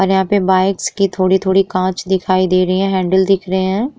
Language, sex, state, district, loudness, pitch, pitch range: Hindi, female, Uttar Pradesh, Muzaffarnagar, -15 LUFS, 190 Hz, 185-195 Hz